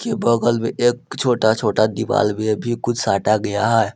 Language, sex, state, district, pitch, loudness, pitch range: Hindi, male, Jharkhand, Palamu, 115 Hz, -19 LUFS, 110-120 Hz